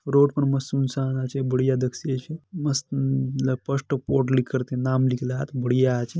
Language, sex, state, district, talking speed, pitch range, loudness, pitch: Halbi, male, Chhattisgarh, Bastar, 185 wpm, 130-140 Hz, -24 LUFS, 135 Hz